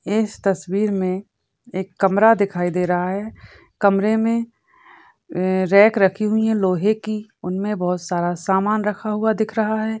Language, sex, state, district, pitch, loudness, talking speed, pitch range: Hindi, female, Maharashtra, Sindhudurg, 200 Hz, -20 LUFS, 155 wpm, 185-215 Hz